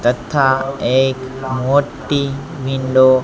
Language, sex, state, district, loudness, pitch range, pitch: Gujarati, male, Gujarat, Gandhinagar, -17 LUFS, 130-135 Hz, 130 Hz